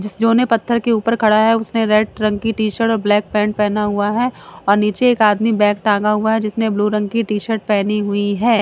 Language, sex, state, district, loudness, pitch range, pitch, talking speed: Hindi, female, Punjab, Kapurthala, -16 LUFS, 210-225 Hz, 215 Hz, 250 wpm